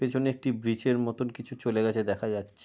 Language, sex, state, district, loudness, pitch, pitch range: Bengali, male, West Bengal, Jalpaiguri, -29 LUFS, 120 Hz, 110-130 Hz